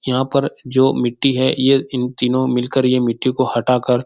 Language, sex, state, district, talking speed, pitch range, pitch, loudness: Hindi, male, Bihar, Jahanabad, 220 wpm, 125-130 Hz, 130 Hz, -17 LUFS